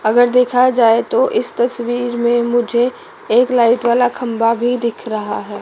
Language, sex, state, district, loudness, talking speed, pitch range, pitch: Hindi, female, Chandigarh, Chandigarh, -15 LUFS, 170 wpm, 235-245 Hz, 240 Hz